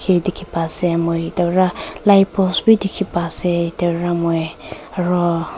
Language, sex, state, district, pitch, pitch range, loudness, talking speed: Nagamese, female, Nagaland, Kohima, 175 Hz, 170-190 Hz, -18 LUFS, 180 wpm